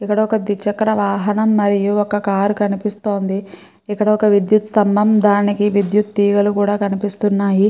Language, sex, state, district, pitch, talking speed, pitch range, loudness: Telugu, female, Andhra Pradesh, Srikakulam, 205 Hz, 125 wpm, 200-210 Hz, -16 LUFS